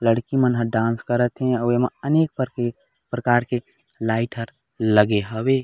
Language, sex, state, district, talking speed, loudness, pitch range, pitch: Chhattisgarhi, male, Chhattisgarh, Raigarh, 160 wpm, -22 LUFS, 115-125 Hz, 120 Hz